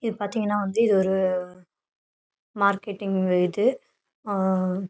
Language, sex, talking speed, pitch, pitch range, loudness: Tamil, female, 85 wpm, 195 Hz, 185-205 Hz, -24 LUFS